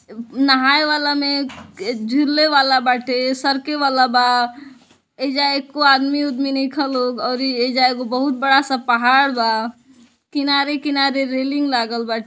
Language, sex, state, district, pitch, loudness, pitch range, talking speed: Bhojpuri, female, Uttar Pradesh, Deoria, 270 Hz, -17 LUFS, 250-280 Hz, 130 wpm